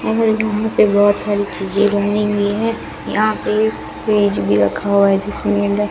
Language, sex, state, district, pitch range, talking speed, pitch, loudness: Hindi, female, Rajasthan, Bikaner, 200-215 Hz, 185 wpm, 205 Hz, -16 LUFS